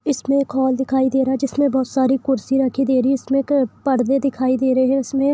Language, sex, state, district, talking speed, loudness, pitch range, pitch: Hindi, female, Jharkhand, Jamtara, 260 wpm, -18 LUFS, 260-275 Hz, 265 Hz